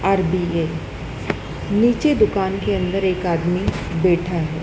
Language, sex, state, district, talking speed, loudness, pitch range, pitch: Hindi, male, Madhya Pradesh, Dhar, 115 wpm, -20 LUFS, 175-195 Hz, 185 Hz